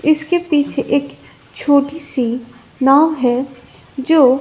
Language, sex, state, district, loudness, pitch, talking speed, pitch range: Hindi, female, Bihar, West Champaran, -16 LUFS, 270 Hz, 110 wpm, 245-295 Hz